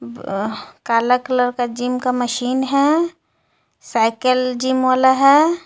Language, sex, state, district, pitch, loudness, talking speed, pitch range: Hindi, female, Jharkhand, Ranchi, 250 Hz, -17 LUFS, 115 wpm, 240-260 Hz